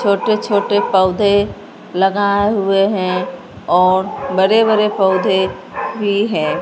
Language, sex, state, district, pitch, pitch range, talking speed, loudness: Hindi, male, Punjab, Fazilka, 200 Hz, 190-210 Hz, 110 wpm, -15 LUFS